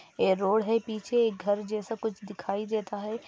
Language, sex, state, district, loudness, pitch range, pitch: Hindi, female, Andhra Pradesh, Anantapur, -29 LUFS, 205-225 Hz, 215 Hz